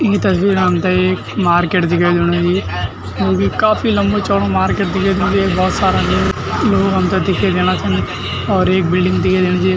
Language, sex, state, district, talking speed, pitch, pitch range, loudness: Garhwali, male, Uttarakhand, Tehri Garhwal, 190 wpm, 185 Hz, 170-190 Hz, -15 LUFS